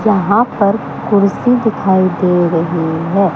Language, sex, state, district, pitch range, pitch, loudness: Hindi, male, Haryana, Charkhi Dadri, 175-210 Hz, 195 Hz, -13 LUFS